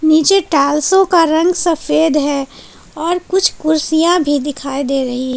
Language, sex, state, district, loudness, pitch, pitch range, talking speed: Hindi, female, Jharkhand, Palamu, -14 LUFS, 315 Hz, 285-340 Hz, 155 wpm